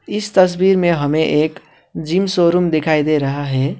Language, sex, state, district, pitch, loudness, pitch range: Hindi, male, West Bengal, Alipurduar, 160 Hz, -16 LUFS, 150-185 Hz